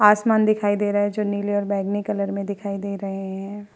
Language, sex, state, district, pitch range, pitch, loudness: Hindi, female, Uttar Pradesh, Hamirpur, 200-205 Hz, 205 Hz, -23 LUFS